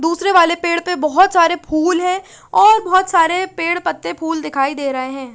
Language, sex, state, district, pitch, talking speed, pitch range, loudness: Hindi, female, Chandigarh, Chandigarh, 340 Hz, 200 wpm, 310-365 Hz, -15 LUFS